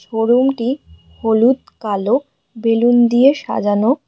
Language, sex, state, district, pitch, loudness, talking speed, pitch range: Bengali, female, West Bengal, Alipurduar, 230 Hz, -16 LUFS, 105 wpm, 205-255 Hz